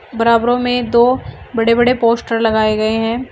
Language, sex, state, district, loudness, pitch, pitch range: Hindi, female, Uttar Pradesh, Shamli, -14 LUFS, 230 Hz, 225-245 Hz